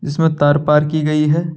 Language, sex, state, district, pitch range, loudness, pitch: Hindi, male, Jharkhand, Deoghar, 150-160 Hz, -15 LUFS, 150 Hz